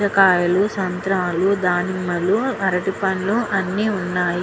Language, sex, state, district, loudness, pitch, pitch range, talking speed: Telugu, female, Andhra Pradesh, Guntur, -19 LUFS, 190 Hz, 180-200 Hz, 110 wpm